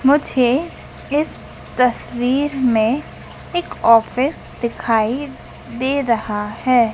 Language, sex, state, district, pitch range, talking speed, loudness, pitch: Hindi, female, Madhya Pradesh, Dhar, 230-280 Hz, 85 wpm, -18 LUFS, 250 Hz